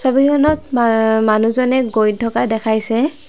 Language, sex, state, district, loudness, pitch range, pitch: Assamese, female, Assam, Kamrup Metropolitan, -14 LUFS, 220-265 Hz, 235 Hz